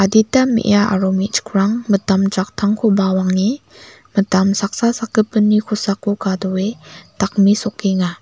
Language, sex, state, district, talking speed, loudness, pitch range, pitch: Garo, female, Meghalaya, West Garo Hills, 95 wpm, -16 LUFS, 195-215 Hz, 200 Hz